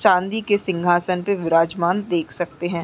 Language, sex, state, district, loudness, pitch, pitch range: Hindi, female, Uttarakhand, Uttarkashi, -21 LUFS, 175 Hz, 170-190 Hz